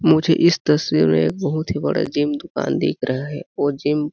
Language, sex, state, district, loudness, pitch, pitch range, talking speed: Hindi, male, Chhattisgarh, Balrampur, -19 LUFS, 150 Hz, 140-160 Hz, 235 wpm